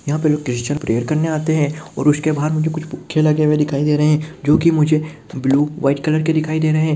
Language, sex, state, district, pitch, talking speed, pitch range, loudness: Hindi, male, Rajasthan, Nagaur, 155 Hz, 260 wpm, 145-155 Hz, -17 LUFS